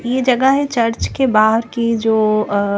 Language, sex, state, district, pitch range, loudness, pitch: Hindi, female, Punjab, Kapurthala, 215-255 Hz, -15 LUFS, 230 Hz